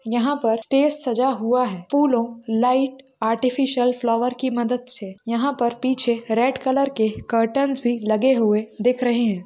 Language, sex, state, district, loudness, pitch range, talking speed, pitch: Hindi, female, Bihar, Jamui, -21 LUFS, 230-260 Hz, 165 wpm, 245 Hz